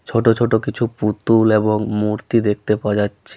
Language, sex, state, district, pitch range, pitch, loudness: Bengali, male, West Bengal, Malda, 105-115 Hz, 110 Hz, -18 LUFS